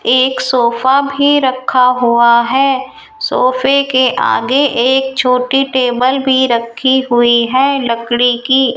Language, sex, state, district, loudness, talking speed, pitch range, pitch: Hindi, female, Rajasthan, Jaipur, -12 LUFS, 125 wpm, 245-265 Hz, 255 Hz